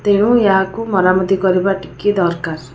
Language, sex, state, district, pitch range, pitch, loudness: Odia, female, Odisha, Khordha, 185-200 Hz, 190 Hz, -15 LUFS